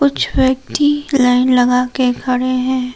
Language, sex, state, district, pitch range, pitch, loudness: Hindi, female, Jharkhand, Palamu, 250-265 Hz, 255 Hz, -15 LUFS